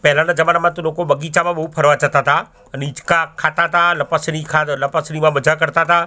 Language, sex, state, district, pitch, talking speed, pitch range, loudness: Gujarati, male, Gujarat, Gandhinagar, 160 Hz, 160 wpm, 145-170 Hz, -16 LUFS